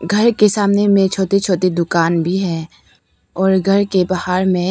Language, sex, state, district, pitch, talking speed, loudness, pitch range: Hindi, female, Arunachal Pradesh, Papum Pare, 190 Hz, 180 wpm, -15 LUFS, 180-200 Hz